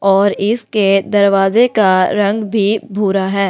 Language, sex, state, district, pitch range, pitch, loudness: Hindi, female, Delhi, New Delhi, 195-210 Hz, 200 Hz, -14 LUFS